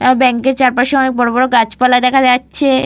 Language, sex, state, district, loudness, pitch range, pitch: Bengali, female, Jharkhand, Jamtara, -12 LUFS, 245-265 Hz, 255 Hz